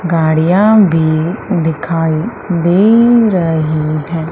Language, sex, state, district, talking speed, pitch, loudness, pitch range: Hindi, female, Madhya Pradesh, Umaria, 85 wpm, 165 Hz, -12 LUFS, 160-185 Hz